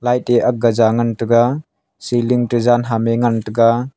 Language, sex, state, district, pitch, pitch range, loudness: Wancho, male, Arunachal Pradesh, Longding, 120 Hz, 115-120 Hz, -16 LUFS